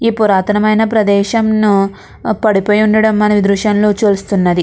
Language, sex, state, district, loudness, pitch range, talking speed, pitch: Telugu, female, Andhra Pradesh, Krishna, -12 LUFS, 200-215 Hz, 105 wpm, 210 Hz